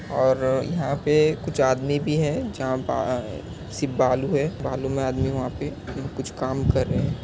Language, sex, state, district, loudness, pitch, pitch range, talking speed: Hindi, male, Bihar, Kishanganj, -24 LUFS, 135 Hz, 130-145 Hz, 180 wpm